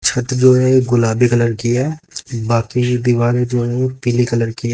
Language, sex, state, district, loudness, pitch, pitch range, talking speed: Hindi, male, Haryana, Jhajjar, -15 LUFS, 125 Hz, 120-125 Hz, 215 wpm